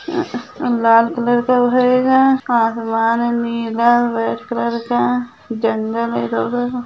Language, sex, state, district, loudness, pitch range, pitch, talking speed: Hindi, female, Chhattisgarh, Bilaspur, -16 LUFS, 225-245 Hz, 235 Hz, 140 wpm